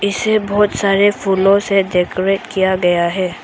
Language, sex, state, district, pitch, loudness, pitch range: Hindi, female, Arunachal Pradesh, Papum Pare, 195 Hz, -15 LUFS, 185-200 Hz